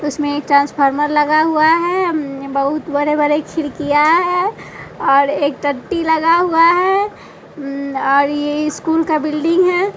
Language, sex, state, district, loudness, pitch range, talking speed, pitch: Hindi, female, Bihar, West Champaran, -15 LUFS, 285-330 Hz, 145 wpm, 300 Hz